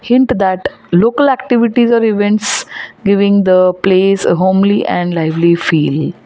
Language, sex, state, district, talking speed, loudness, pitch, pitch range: English, female, Gujarat, Valsad, 125 wpm, -12 LUFS, 200 Hz, 180-235 Hz